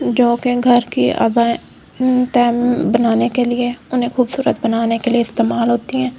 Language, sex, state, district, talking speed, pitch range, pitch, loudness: Hindi, female, Delhi, New Delhi, 185 wpm, 235-250 Hz, 240 Hz, -16 LUFS